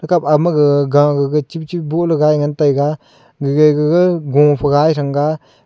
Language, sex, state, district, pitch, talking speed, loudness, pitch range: Wancho, male, Arunachal Pradesh, Longding, 150 Hz, 170 wpm, -14 LUFS, 145-160 Hz